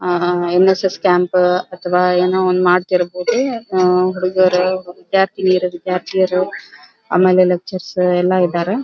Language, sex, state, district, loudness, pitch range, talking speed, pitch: Kannada, female, Karnataka, Belgaum, -16 LUFS, 180-185 Hz, 100 wpm, 180 Hz